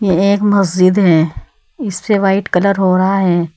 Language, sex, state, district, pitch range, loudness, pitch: Hindi, female, Uttar Pradesh, Saharanpur, 180-200 Hz, -13 LUFS, 190 Hz